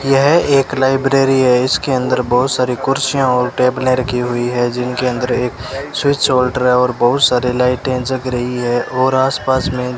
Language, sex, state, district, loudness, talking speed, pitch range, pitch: Hindi, male, Rajasthan, Bikaner, -15 LUFS, 185 wpm, 125-130 Hz, 125 Hz